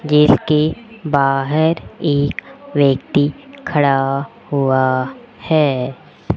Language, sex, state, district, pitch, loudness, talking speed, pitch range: Hindi, female, Rajasthan, Jaipur, 145 Hz, -17 LUFS, 75 wpm, 135-155 Hz